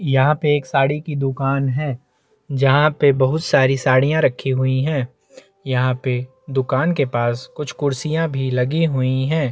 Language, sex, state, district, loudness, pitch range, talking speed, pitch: Hindi, male, Chhattisgarh, Bastar, -19 LUFS, 130-150 Hz, 165 wpm, 135 Hz